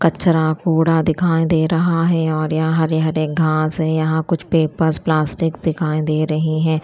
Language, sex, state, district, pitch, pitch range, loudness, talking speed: Hindi, female, Punjab, Kapurthala, 160 Hz, 155-165 Hz, -17 LUFS, 175 wpm